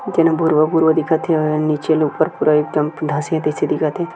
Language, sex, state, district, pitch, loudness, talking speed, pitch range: Chhattisgarhi, male, Chhattisgarh, Sukma, 155 Hz, -17 LUFS, 230 wpm, 150-160 Hz